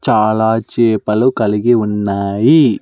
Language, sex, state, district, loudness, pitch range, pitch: Telugu, male, Andhra Pradesh, Sri Satya Sai, -13 LUFS, 105-115 Hz, 110 Hz